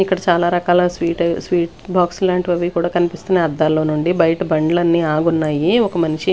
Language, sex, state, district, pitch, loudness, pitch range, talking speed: Telugu, female, Andhra Pradesh, Sri Satya Sai, 175 Hz, -17 LUFS, 165-180 Hz, 160 wpm